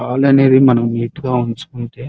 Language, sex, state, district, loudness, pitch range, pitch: Telugu, male, Andhra Pradesh, Krishna, -14 LUFS, 120-135 Hz, 125 Hz